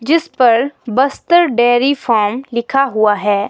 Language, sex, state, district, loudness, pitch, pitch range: Hindi, female, Himachal Pradesh, Shimla, -14 LUFS, 245 Hz, 225-275 Hz